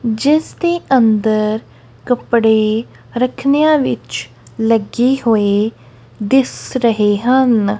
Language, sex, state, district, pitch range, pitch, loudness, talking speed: Punjabi, female, Punjab, Kapurthala, 215-260 Hz, 230 Hz, -15 LUFS, 85 wpm